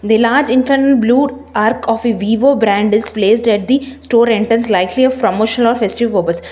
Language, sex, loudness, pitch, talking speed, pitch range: English, female, -13 LUFS, 230 Hz, 185 wpm, 215-255 Hz